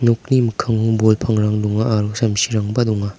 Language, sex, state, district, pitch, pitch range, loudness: Garo, male, Meghalaya, South Garo Hills, 110 Hz, 105-115 Hz, -17 LUFS